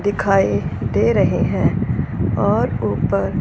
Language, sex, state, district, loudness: Hindi, female, Punjab, Fazilka, -18 LUFS